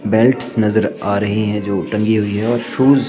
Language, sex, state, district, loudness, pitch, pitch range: Hindi, male, Himachal Pradesh, Shimla, -16 LUFS, 110 Hz, 105-120 Hz